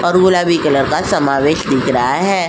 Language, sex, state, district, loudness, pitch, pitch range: Hindi, female, Uttar Pradesh, Jyotiba Phule Nagar, -14 LUFS, 155 Hz, 140-175 Hz